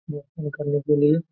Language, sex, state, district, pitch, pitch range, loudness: Hindi, male, Jharkhand, Jamtara, 150 Hz, 145-155 Hz, -23 LUFS